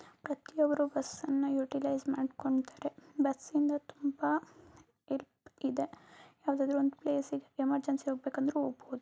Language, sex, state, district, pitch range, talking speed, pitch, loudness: Kannada, female, Karnataka, Mysore, 275-290 Hz, 100 wpm, 280 Hz, -34 LUFS